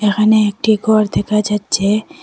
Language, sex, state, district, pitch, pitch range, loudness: Bengali, female, Assam, Hailakandi, 210 Hz, 210-215 Hz, -14 LUFS